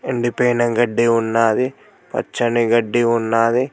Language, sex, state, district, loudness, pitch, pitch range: Telugu, male, Telangana, Mahabubabad, -18 LUFS, 120 Hz, 115-120 Hz